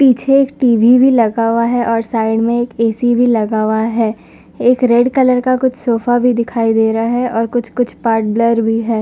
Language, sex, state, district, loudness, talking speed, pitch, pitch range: Hindi, female, Punjab, Fazilka, -13 LUFS, 215 wpm, 235 Hz, 225-245 Hz